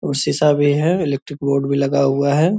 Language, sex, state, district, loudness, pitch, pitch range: Hindi, male, Bihar, Purnia, -17 LUFS, 140 Hz, 140-150 Hz